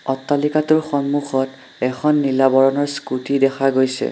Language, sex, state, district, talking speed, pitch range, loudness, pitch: Assamese, male, Assam, Sonitpur, 115 wpm, 130-145 Hz, -18 LUFS, 135 Hz